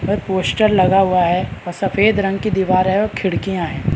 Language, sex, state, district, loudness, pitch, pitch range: Hindi, male, Bihar, Madhepura, -17 LUFS, 190 Hz, 180-200 Hz